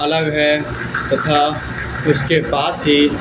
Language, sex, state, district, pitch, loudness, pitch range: Hindi, male, Haryana, Charkhi Dadri, 150 Hz, -16 LUFS, 145-150 Hz